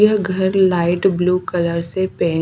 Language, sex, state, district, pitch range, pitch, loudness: Hindi, female, Haryana, Charkhi Dadri, 170-190 Hz, 180 Hz, -17 LUFS